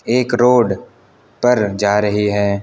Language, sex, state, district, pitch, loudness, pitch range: Hindi, male, Uttar Pradesh, Lucknow, 105 Hz, -15 LUFS, 105-125 Hz